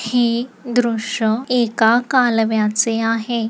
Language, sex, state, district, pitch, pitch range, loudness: Marathi, female, Maharashtra, Nagpur, 230 Hz, 225-245 Hz, -17 LUFS